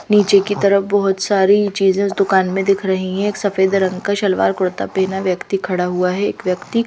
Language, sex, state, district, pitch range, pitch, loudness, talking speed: Hindi, female, Haryana, Rohtak, 190-200 Hz, 195 Hz, -16 LUFS, 220 wpm